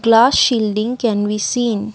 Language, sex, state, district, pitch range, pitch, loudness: English, female, Assam, Kamrup Metropolitan, 210-240 Hz, 225 Hz, -16 LUFS